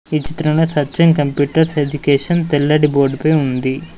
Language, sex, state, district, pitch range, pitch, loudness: Telugu, male, Telangana, Mahabubabad, 145-155 Hz, 150 Hz, -15 LUFS